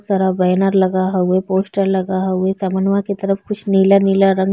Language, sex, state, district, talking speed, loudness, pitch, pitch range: Bhojpuri, female, Bihar, East Champaran, 200 wpm, -16 LUFS, 190 Hz, 190-195 Hz